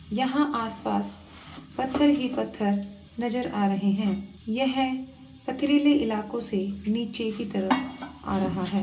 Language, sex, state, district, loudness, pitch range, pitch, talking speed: Hindi, female, Bihar, Saharsa, -27 LUFS, 200-260 Hz, 225 Hz, 130 wpm